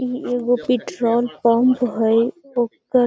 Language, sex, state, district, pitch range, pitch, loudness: Magahi, female, Bihar, Gaya, 235-250 Hz, 245 Hz, -19 LUFS